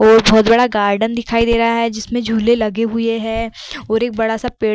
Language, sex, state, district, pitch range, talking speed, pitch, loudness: Hindi, female, Uttar Pradesh, Varanasi, 220-230 Hz, 240 wpm, 230 Hz, -15 LUFS